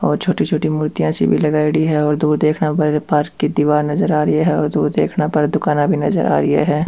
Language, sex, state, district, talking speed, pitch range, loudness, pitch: Rajasthani, male, Rajasthan, Churu, 255 wpm, 150-155 Hz, -16 LUFS, 150 Hz